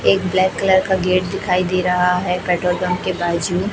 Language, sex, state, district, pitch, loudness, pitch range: Hindi, female, Chhattisgarh, Raipur, 180 Hz, -18 LUFS, 180-185 Hz